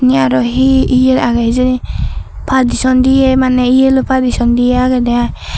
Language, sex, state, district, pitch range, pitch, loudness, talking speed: Chakma, female, Tripura, Dhalai, 240-260 Hz, 255 Hz, -11 LUFS, 160 wpm